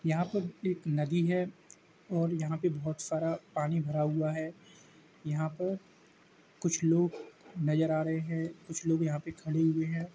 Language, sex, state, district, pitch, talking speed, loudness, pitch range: Hindi, male, Uttar Pradesh, Jalaun, 165 Hz, 170 wpm, -32 LUFS, 155-175 Hz